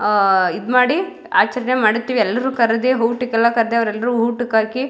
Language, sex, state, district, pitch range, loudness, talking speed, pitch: Kannada, female, Karnataka, Mysore, 225-250 Hz, -17 LUFS, 160 wpm, 235 Hz